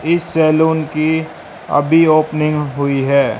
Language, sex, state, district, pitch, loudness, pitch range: Hindi, male, Haryana, Rohtak, 155 Hz, -15 LUFS, 145-160 Hz